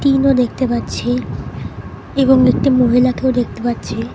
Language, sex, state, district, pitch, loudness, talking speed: Bengali, female, West Bengal, Cooch Behar, 245 Hz, -15 LUFS, 115 wpm